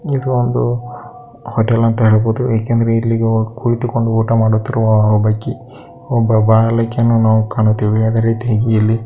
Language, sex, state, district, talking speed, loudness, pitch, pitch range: Kannada, male, Karnataka, Bellary, 130 wpm, -14 LUFS, 115 Hz, 110-120 Hz